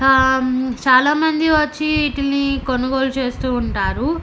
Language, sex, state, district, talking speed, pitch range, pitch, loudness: Telugu, female, Andhra Pradesh, Anantapur, 115 wpm, 255-300 Hz, 270 Hz, -17 LUFS